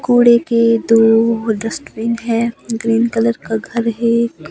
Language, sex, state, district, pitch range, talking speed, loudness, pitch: Hindi, female, Himachal Pradesh, Shimla, 225-235 Hz, 135 wpm, -15 LUFS, 230 Hz